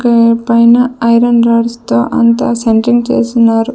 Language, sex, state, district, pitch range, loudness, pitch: Telugu, female, Andhra Pradesh, Sri Satya Sai, 230-240 Hz, -10 LUFS, 235 Hz